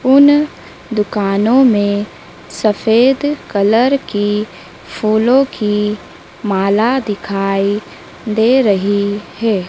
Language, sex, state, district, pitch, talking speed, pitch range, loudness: Hindi, female, Madhya Pradesh, Dhar, 210 Hz, 80 wpm, 200-240 Hz, -14 LUFS